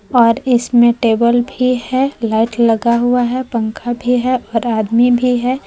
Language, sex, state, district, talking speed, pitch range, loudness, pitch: Hindi, female, Jharkhand, Palamu, 170 wpm, 230-250 Hz, -14 LUFS, 240 Hz